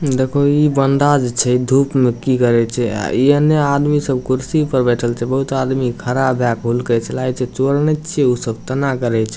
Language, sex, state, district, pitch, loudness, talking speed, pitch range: Maithili, male, Bihar, Samastipur, 130 Hz, -16 LUFS, 235 wpm, 120-140 Hz